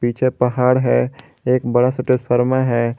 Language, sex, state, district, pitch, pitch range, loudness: Hindi, male, Jharkhand, Garhwa, 125 Hz, 120-130 Hz, -17 LUFS